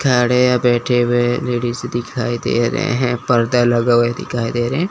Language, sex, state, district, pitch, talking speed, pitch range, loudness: Hindi, male, Chandigarh, Chandigarh, 120 Hz, 210 wpm, 120-125 Hz, -17 LUFS